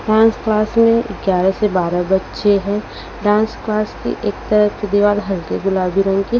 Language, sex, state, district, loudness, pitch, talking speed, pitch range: Hindi, female, Haryana, Rohtak, -17 LUFS, 205 Hz, 180 wpm, 195-215 Hz